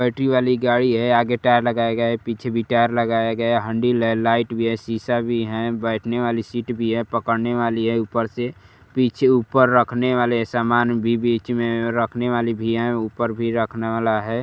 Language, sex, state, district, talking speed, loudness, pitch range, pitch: Hindi, male, Uttar Pradesh, Gorakhpur, 210 wpm, -20 LUFS, 115-120 Hz, 115 Hz